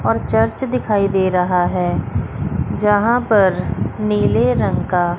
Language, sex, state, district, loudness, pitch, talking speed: Hindi, female, Chandigarh, Chandigarh, -17 LUFS, 175 Hz, 125 wpm